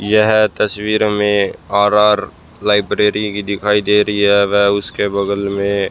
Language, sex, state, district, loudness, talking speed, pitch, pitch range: Hindi, male, Haryana, Rohtak, -15 LUFS, 150 wpm, 105 Hz, 100-105 Hz